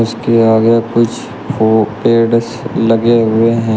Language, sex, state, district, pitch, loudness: Hindi, male, Uttar Pradesh, Shamli, 115 Hz, -12 LUFS